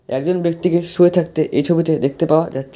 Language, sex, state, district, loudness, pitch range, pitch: Bengali, male, West Bengal, Alipurduar, -17 LUFS, 150-175 Hz, 165 Hz